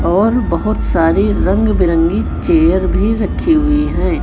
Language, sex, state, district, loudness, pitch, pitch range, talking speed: Hindi, male, Chhattisgarh, Raipur, -14 LUFS, 215 Hz, 190-300 Hz, 140 wpm